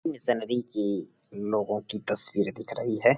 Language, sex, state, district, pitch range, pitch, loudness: Hindi, male, Uttar Pradesh, Gorakhpur, 105-120 Hz, 105 Hz, -30 LUFS